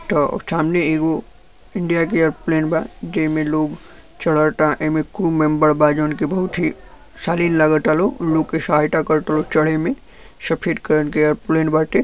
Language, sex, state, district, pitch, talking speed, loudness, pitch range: Bhojpuri, male, Uttar Pradesh, Gorakhpur, 155 Hz, 175 wpm, -18 LUFS, 155-165 Hz